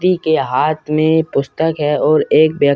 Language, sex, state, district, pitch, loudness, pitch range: Hindi, male, Bihar, Muzaffarpur, 155 Hz, -15 LUFS, 150-160 Hz